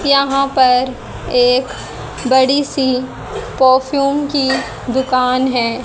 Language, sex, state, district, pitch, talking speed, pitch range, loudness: Hindi, female, Haryana, Charkhi Dadri, 260 Hz, 90 wpm, 255-275 Hz, -15 LUFS